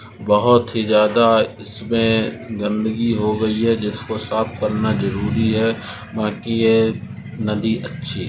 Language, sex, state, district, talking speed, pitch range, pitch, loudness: Hindi, female, Rajasthan, Nagaur, 130 wpm, 105-115 Hz, 110 Hz, -19 LUFS